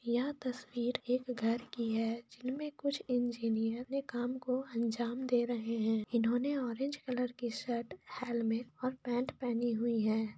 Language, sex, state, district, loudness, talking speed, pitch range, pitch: Hindi, female, Jharkhand, Sahebganj, -36 LUFS, 160 wpm, 230-255 Hz, 245 Hz